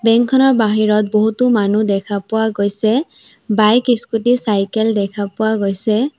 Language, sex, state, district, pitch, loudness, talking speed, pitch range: Assamese, female, Assam, Sonitpur, 220 Hz, -15 LUFS, 135 wpm, 210-235 Hz